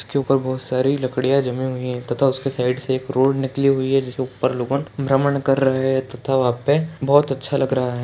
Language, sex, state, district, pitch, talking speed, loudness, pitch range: Hindi, male, Chhattisgarh, Bastar, 135 Hz, 240 wpm, -20 LUFS, 130-135 Hz